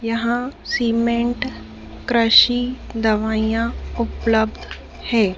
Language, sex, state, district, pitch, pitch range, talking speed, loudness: Hindi, female, Madhya Pradesh, Dhar, 230 Hz, 225-240 Hz, 55 wpm, -19 LUFS